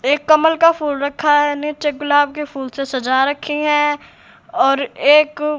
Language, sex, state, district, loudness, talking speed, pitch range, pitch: Hindi, female, Haryana, Rohtak, -16 LUFS, 170 wpm, 280-300 Hz, 295 Hz